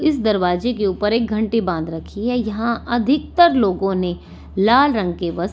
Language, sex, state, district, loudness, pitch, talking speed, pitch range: Hindi, female, Delhi, New Delhi, -18 LUFS, 220 Hz, 185 wpm, 185-240 Hz